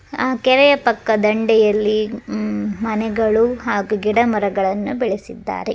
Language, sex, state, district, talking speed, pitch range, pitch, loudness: Kannada, male, Karnataka, Dharwad, 85 wpm, 210-235 Hz, 220 Hz, -17 LUFS